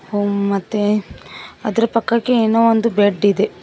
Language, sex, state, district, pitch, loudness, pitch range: Kannada, female, Karnataka, Koppal, 210 Hz, -17 LUFS, 205-230 Hz